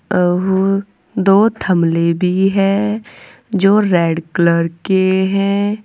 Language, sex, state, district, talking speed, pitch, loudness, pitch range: Hindi, female, Uttar Pradesh, Saharanpur, 100 wpm, 190 Hz, -15 LUFS, 175-200 Hz